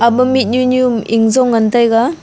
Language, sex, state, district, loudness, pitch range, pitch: Wancho, female, Arunachal Pradesh, Longding, -12 LUFS, 230-255 Hz, 240 Hz